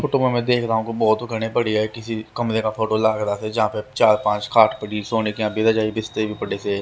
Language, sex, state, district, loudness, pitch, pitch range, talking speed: Hindi, male, Haryana, Rohtak, -21 LUFS, 110 Hz, 105-115 Hz, 265 wpm